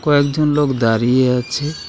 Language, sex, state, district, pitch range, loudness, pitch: Bengali, male, West Bengal, Alipurduar, 125-150 Hz, -16 LUFS, 140 Hz